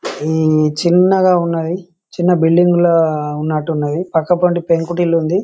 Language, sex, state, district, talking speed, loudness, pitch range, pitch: Telugu, male, Telangana, Karimnagar, 120 wpm, -14 LUFS, 160-175 Hz, 170 Hz